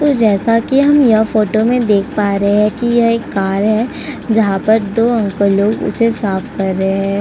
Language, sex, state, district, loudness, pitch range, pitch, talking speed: Hindi, female, Uttar Pradesh, Etah, -13 LUFS, 200-230 Hz, 215 Hz, 215 wpm